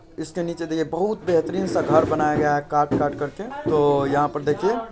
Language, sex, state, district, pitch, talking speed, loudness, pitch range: Hindi, male, Bihar, Purnia, 155 Hz, 220 wpm, -22 LUFS, 145-175 Hz